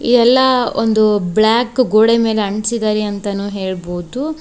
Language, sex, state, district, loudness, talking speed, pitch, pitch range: Kannada, female, Karnataka, Koppal, -15 LUFS, 110 wpm, 215 Hz, 205-240 Hz